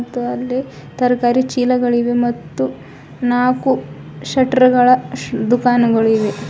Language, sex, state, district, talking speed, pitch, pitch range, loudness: Kannada, female, Karnataka, Bidar, 90 wpm, 245 Hz, 230-250 Hz, -16 LUFS